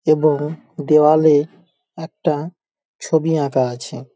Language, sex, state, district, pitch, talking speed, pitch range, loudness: Bengali, male, West Bengal, Paschim Medinipur, 155 Hz, 85 wpm, 145-160 Hz, -17 LUFS